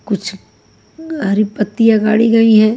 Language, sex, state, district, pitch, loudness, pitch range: Hindi, female, Haryana, Charkhi Dadri, 215 Hz, -13 LUFS, 205-225 Hz